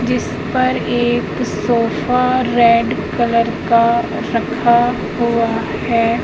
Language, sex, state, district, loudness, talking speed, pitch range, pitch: Hindi, female, Madhya Pradesh, Umaria, -16 LUFS, 95 wpm, 230-240 Hz, 235 Hz